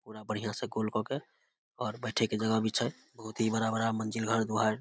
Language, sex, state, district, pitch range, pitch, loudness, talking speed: Maithili, male, Bihar, Samastipur, 110-115 Hz, 110 Hz, -32 LUFS, 235 wpm